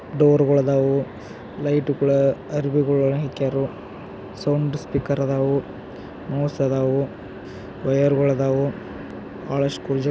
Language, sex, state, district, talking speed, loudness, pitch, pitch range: Kannada, male, Karnataka, Belgaum, 95 wpm, -21 LUFS, 135 Hz, 115-140 Hz